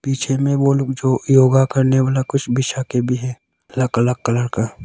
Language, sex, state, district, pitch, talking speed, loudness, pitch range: Hindi, male, Arunachal Pradesh, Longding, 130 Hz, 210 wpm, -17 LUFS, 125-135 Hz